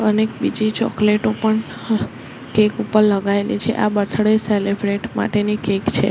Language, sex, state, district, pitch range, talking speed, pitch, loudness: Gujarati, female, Gujarat, Gandhinagar, 200-220 Hz, 140 wpm, 210 Hz, -19 LUFS